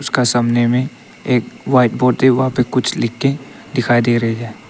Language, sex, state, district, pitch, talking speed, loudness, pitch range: Hindi, male, Arunachal Pradesh, Papum Pare, 125 Hz, 190 wpm, -16 LUFS, 120-130 Hz